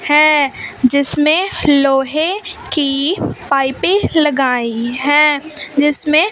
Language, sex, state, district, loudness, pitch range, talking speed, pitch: Hindi, female, Punjab, Fazilka, -14 LUFS, 275-315 Hz, 75 wpm, 295 Hz